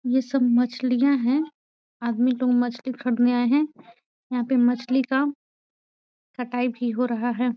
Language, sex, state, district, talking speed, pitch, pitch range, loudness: Hindi, female, Uttar Pradesh, Ghazipur, 150 wpm, 250 Hz, 245-265 Hz, -23 LUFS